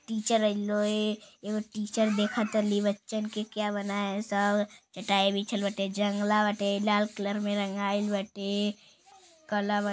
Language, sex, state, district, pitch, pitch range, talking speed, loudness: Hindi, female, Uttar Pradesh, Gorakhpur, 205 Hz, 200-215 Hz, 150 wpm, -29 LUFS